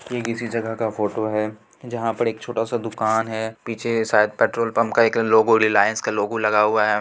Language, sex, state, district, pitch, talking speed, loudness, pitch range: Hindi, female, Bihar, Supaul, 110 Hz, 215 wpm, -21 LUFS, 110-115 Hz